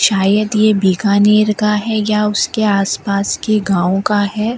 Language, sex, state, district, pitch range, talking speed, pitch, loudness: Hindi, female, Rajasthan, Bikaner, 200-215 Hz, 170 wpm, 210 Hz, -14 LUFS